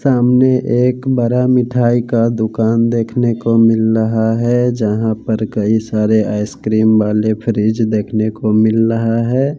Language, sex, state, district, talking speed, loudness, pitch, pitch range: Hindi, male, Bihar, West Champaran, 145 wpm, -14 LUFS, 115 Hz, 110-120 Hz